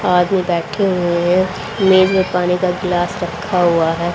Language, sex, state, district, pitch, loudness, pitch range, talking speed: Hindi, female, Haryana, Rohtak, 180 Hz, -16 LUFS, 175-185 Hz, 160 wpm